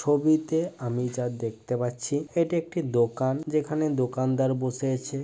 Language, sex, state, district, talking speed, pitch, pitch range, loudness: Bengali, male, West Bengal, Kolkata, 140 wpm, 130 Hz, 125-155 Hz, -27 LUFS